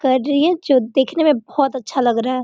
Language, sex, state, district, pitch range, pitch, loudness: Hindi, female, Bihar, Gopalganj, 255-285 Hz, 265 Hz, -17 LUFS